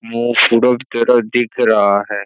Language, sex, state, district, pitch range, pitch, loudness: Hindi, male, Bihar, Kishanganj, 105-120 Hz, 115 Hz, -14 LUFS